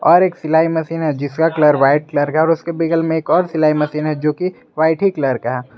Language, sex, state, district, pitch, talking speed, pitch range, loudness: Hindi, male, Jharkhand, Garhwa, 160 Hz, 270 wpm, 150-165 Hz, -16 LUFS